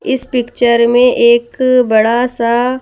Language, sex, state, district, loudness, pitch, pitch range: Hindi, female, Madhya Pradesh, Bhopal, -11 LUFS, 245 Hz, 235-250 Hz